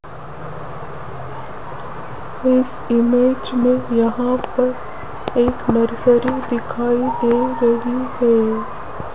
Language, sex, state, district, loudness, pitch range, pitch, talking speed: Hindi, female, Rajasthan, Jaipur, -18 LUFS, 230-250 Hz, 240 Hz, 70 wpm